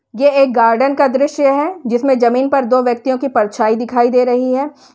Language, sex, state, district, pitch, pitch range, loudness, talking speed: Hindi, female, Uttar Pradesh, Shamli, 260 Hz, 240-275 Hz, -14 LUFS, 205 wpm